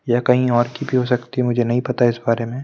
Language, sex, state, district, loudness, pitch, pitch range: Hindi, male, Madhya Pradesh, Bhopal, -19 LUFS, 125 Hz, 120-125 Hz